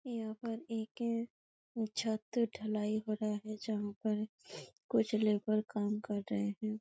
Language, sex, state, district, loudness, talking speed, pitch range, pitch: Hindi, female, Chhattisgarh, Bastar, -37 LUFS, 150 wpm, 210-225 Hz, 215 Hz